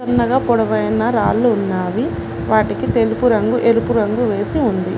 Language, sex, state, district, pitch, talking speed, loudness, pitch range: Telugu, female, Telangana, Mahabubabad, 230 Hz, 130 wpm, -16 LUFS, 200-240 Hz